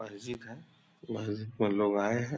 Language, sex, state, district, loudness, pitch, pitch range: Hindi, male, Bihar, Purnia, -33 LUFS, 115 Hz, 105-120 Hz